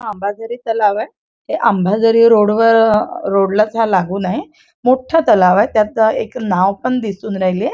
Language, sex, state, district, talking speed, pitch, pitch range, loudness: Marathi, female, Maharashtra, Chandrapur, 145 wpm, 220 Hz, 200-235 Hz, -14 LUFS